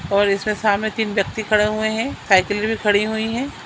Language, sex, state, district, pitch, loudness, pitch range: Hindi, female, Chhattisgarh, Raigarh, 215 Hz, -19 LUFS, 205-220 Hz